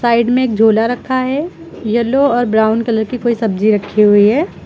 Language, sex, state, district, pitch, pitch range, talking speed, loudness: Hindi, female, Uttar Pradesh, Lucknow, 230 Hz, 220-250 Hz, 205 wpm, -13 LUFS